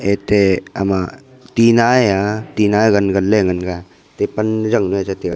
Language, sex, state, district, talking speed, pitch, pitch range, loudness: Wancho, male, Arunachal Pradesh, Longding, 145 wpm, 105 Hz, 95-110 Hz, -16 LUFS